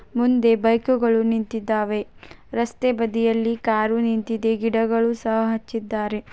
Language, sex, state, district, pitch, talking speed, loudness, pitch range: Kannada, female, Karnataka, Belgaum, 225 Hz, 95 wpm, -21 LUFS, 225-230 Hz